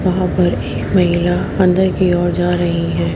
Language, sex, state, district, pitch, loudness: Hindi, female, Haryana, Jhajjar, 175 Hz, -15 LUFS